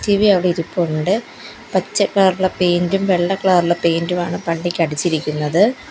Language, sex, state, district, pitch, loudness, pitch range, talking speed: Malayalam, female, Kerala, Kollam, 180 Hz, -17 LUFS, 170-195 Hz, 130 wpm